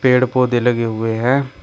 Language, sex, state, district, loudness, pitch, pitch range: Hindi, male, Uttar Pradesh, Shamli, -17 LUFS, 125 Hz, 115-130 Hz